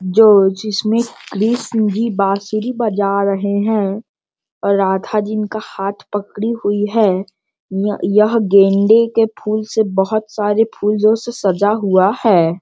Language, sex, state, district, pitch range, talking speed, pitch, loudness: Hindi, male, Bihar, Sitamarhi, 195-220 Hz, 140 wpm, 210 Hz, -15 LUFS